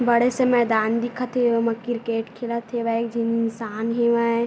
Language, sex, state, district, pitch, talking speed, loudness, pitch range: Chhattisgarhi, female, Chhattisgarh, Bilaspur, 235 Hz, 160 wpm, -23 LUFS, 230-240 Hz